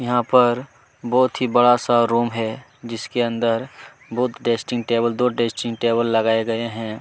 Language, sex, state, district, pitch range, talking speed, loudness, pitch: Hindi, male, Chhattisgarh, Kabirdham, 115-125 Hz, 165 wpm, -20 LUFS, 120 Hz